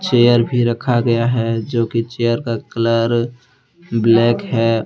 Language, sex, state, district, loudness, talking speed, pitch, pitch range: Hindi, male, Jharkhand, Deoghar, -16 LUFS, 150 wpm, 115 Hz, 115-120 Hz